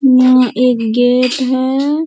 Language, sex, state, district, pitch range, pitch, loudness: Hindi, female, Bihar, Purnia, 250-265 Hz, 255 Hz, -12 LUFS